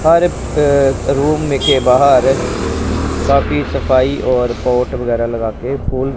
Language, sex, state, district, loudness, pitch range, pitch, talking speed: Hindi, male, Punjab, Pathankot, -14 LUFS, 95-140 Hz, 125 Hz, 105 wpm